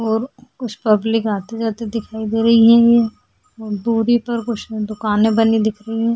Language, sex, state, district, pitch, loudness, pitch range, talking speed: Hindi, female, Goa, North and South Goa, 225 Hz, -17 LUFS, 220-230 Hz, 165 wpm